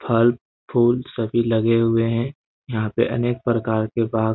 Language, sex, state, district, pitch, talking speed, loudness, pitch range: Hindi, male, Bihar, Jamui, 115 Hz, 165 wpm, -21 LUFS, 115-120 Hz